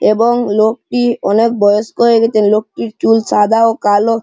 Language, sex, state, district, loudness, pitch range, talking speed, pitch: Bengali, male, West Bengal, Malda, -12 LUFS, 205-230 Hz, 155 wpm, 220 Hz